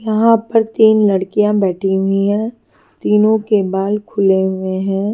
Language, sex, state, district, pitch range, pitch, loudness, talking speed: Hindi, female, Haryana, Charkhi Dadri, 195-220 Hz, 210 Hz, -15 LUFS, 150 wpm